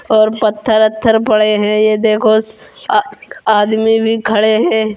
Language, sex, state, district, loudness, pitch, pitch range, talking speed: Hindi, female, Uttar Pradesh, Jyotiba Phule Nagar, -12 LUFS, 220 Hz, 215-225 Hz, 145 wpm